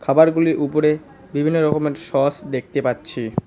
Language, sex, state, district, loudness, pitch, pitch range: Bengali, male, West Bengal, Cooch Behar, -20 LUFS, 150 Hz, 135-160 Hz